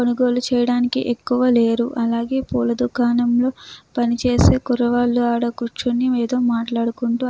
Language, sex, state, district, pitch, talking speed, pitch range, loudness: Telugu, female, Andhra Pradesh, Krishna, 240 Hz, 105 wpm, 235-250 Hz, -19 LUFS